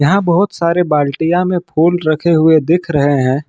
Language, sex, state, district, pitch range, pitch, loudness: Hindi, male, Jharkhand, Ranchi, 150-175 Hz, 165 Hz, -13 LUFS